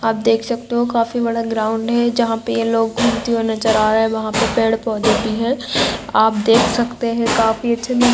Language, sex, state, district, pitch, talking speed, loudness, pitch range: Hindi, female, Chhattisgarh, Raigarh, 230 Hz, 230 wpm, -17 LUFS, 225-235 Hz